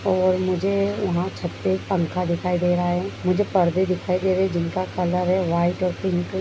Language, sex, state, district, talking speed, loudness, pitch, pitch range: Hindi, female, Bihar, Begusarai, 215 wpm, -22 LUFS, 180 Hz, 175-185 Hz